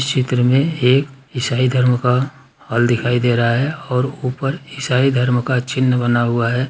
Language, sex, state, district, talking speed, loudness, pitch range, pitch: Hindi, male, Uttar Pradesh, Ghazipur, 180 wpm, -17 LUFS, 125-135 Hz, 125 Hz